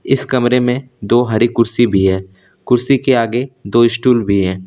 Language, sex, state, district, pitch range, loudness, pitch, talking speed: Hindi, male, Jharkhand, Deoghar, 100-125 Hz, -14 LUFS, 120 Hz, 195 wpm